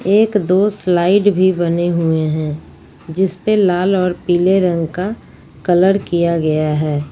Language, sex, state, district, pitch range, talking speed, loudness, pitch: Hindi, female, Jharkhand, Ranchi, 165-195 Hz, 150 wpm, -15 LUFS, 180 Hz